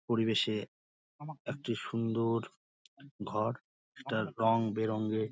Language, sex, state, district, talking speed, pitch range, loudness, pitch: Bengali, male, West Bengal, Dakshin Dinajpur, 100 wpm, 110-115 Hz, -34 LUFS, 115 Hz